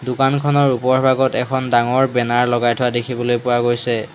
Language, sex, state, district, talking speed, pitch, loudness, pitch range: Assamese, male, Assam, Hailakandi, 145 wpm, 125 Hz, -17 LUFS, 120-130 Hz